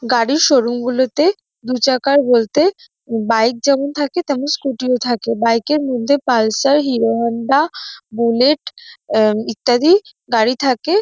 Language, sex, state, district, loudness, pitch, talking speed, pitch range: Bengali, female, West Bengal, North 24 Parganas, -16 LUFS, 260 Hz, 125 wpm, 235-290 Hz